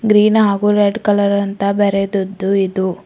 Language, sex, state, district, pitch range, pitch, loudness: Kannada, female, Karnataka, Bidar, 195-205 Hz, 200 Hz, -15 LUFS